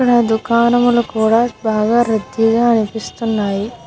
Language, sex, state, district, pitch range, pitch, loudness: Telugu, female, Andhra Pradesh, Guntur, 220-235 Hz, 225 Hz, -15 LUFS